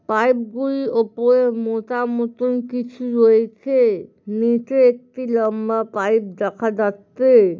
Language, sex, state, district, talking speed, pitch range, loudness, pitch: Bengali, male, West Bengal, Kolkata, 95 wpm, 220-250 Hz, -19 LUFS, 235 Hz